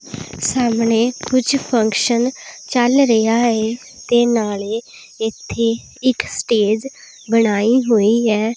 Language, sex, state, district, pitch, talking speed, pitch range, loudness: Punjabi, female, Punjab, Pathankot, 230 Hz, 100 wpm, 220-245 Hz, -17 LUFS